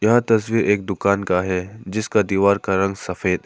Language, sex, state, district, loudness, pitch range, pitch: Hindi, male, Arunachal Pradesh, Papum Pare, -20 LUFS, 95-110 Hz, 100 Hz